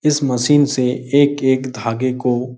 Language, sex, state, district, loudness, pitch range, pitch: Hindi, male, Bihar, Jahanabad, -16 LUFS, 125-140 Hz, 130 Hz